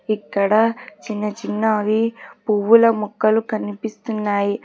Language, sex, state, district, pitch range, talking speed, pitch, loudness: Telugu, female, Telangana, Hyderabad, 210-225 Hz, 80 wpm, 215 Hz, -19 LUFS